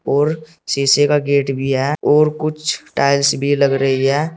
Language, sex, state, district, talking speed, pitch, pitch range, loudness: Hindi, male, Uttar Pradesh, Saharanpur, 180 wpm, 140 Hz, 135-150 Hz, -16 LUFS